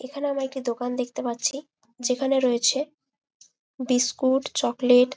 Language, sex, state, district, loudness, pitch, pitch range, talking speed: Bengali, female, West Bengal, Malda, -24 LUFS, 260 Hz, 245-275 Hz, 130 wpm